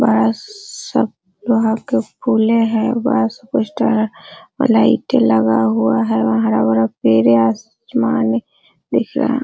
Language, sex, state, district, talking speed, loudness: Hindi, female, Bihar, Araria, 140 wpm, -16 LUFS